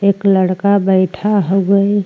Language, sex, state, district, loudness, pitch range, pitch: Bhojpuri, female, Uttar Pradesh, Ghazipur, -14 LUFS, 190-200 Hz, 195 Hz